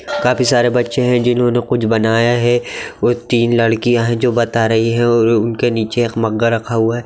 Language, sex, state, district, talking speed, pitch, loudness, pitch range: Magahi, male, Bihar, Gaya, 205 wpm, 120 Hz, -15 LUFS, 115-120 Hz